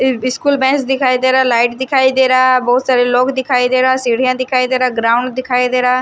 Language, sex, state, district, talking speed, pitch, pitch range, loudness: Hindi, female, Odisha, Sambalpur, 250 wpm, 255 Hz, 250-260 Hz, -13 LUFS